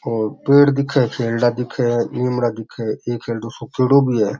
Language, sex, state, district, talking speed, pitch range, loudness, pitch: Rajasthani, male, Rajasthan, Churu, 165 wpm, 115-130 Hz, -18 LUFS, 120 Hz